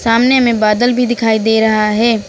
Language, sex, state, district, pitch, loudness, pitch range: Hindi, female, Uttar Pradesh, Lucknow, 230 Hz, -12 LUFS, 220-240 Hz